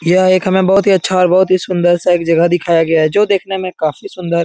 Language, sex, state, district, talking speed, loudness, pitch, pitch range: Hindi, male, Uttar Pradesh, Etah, 285 wpm, -13 LUFS, 180 Hz, 170-190 Hz